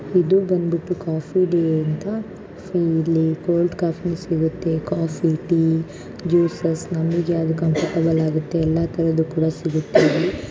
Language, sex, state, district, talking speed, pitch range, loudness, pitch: Kannada, female, Karnataka, Shimoga, 125 wpm, 160-175 Hz, -21 LUFS, 165 Hz